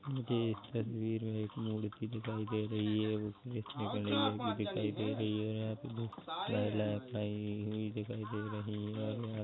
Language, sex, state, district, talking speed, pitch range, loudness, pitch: Hindi, male, Chhattisgarh, Korba, 210 wpm, 105-110 Hz, -38 LUFS, 110 Hz